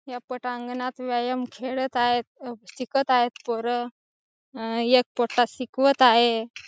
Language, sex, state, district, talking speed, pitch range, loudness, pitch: Marathi, female, Maharashtra, Chandrapur, 125 wpm, 240-255 Hz, -24 LUFS, 245 Hz